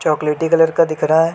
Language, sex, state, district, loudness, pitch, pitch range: Hindi, male, Jharkhand, Sahebganj, -15 LUFS, 160 Hz, 155-165 Hz